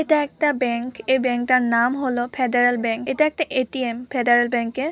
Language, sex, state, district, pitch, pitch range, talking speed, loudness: Bengali, female, West Bengal, Purulia, 250 Hz, 240-265 Hz, 220 wpm, -21 LUFS